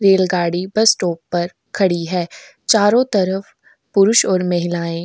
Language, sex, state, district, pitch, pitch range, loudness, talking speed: Hindi, female, Uttar Pradesh, Jyotiba Phule Nagar, 185 Hz, 175-200 Hz, -17 LUFS, 140 wpm